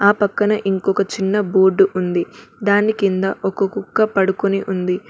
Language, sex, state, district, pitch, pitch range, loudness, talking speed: Telugu, female, Telangana, Mahabubabad, 195 Hz, 190-205 Hz, -18 LUFS, 140 wpm